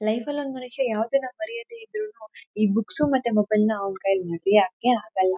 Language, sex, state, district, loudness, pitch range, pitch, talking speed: Kannada, female, Karnataka, Chamarajanagar, -24 LUFS, 210-275 Hz, 220 Hz, 180 wpm